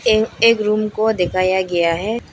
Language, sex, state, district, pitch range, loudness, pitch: Hindi, female, Arunachal Pradesh, Lower Dibang Valley, 185-220 Hz, -17 LUFS, 215 Hz